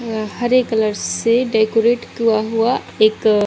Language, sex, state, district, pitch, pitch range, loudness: Hindi, female, Bihar, Kishanganj, 225 Hz, 215-235 Hz, -17 LUFS